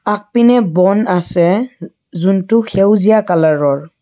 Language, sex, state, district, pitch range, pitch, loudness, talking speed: Assamese, female, Assam, Kamrup Metropolitan, 170-215 Hz, 195 Hz, -13 LUFS, 90 wpm